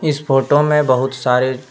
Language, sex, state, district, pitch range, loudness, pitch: Hindi, male, Jharkhand, Deoghar, 130-150 Hz, -15 LUFS, 135 Hz